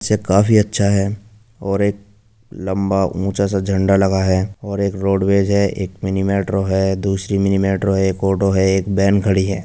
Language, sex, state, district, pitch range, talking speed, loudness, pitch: Hindi, male, Uttar Pradesh, Jyotiba Phule Nagar, 95-100 Hz, 175 wpm, -17 LUFS, 100 Hz